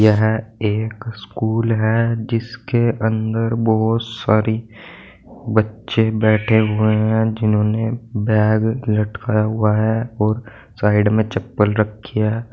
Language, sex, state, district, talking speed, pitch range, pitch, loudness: Hindi, male, Uttar Pradesh, Saharanpur, 110 wpm, 110-115 Hz, 110 Hz, -18 LUFS